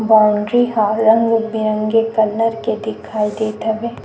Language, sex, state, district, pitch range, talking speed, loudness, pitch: Chhattisgarhi, female, Chhattisgarh, Sukma, 215-225 Hz, 120 wpm, -16 LUFS, 220 Hz